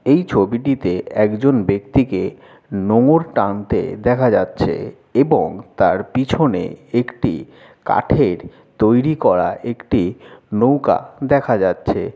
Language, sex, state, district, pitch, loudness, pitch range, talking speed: Bengali, male, West Bengal, Jalpaiguri, 120 Hz, -17 LUFS, 105-135 Hz, 95 wpm